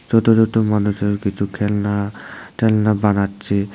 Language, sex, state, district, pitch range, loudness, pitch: Bengali, male, Tripura, West Tripura, 100-110 Hz, -18 LUFS, 105 Hz